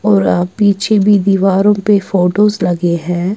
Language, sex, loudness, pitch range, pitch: Urdu, female, -12 LUFS, 180-205 Hz, 195 Hz